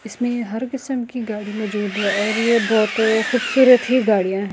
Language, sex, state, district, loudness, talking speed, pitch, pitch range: Hindi, female, Delhi, New Delhi, -18 LUFS, 200 wpm, 220 Hz, 210-245 Hz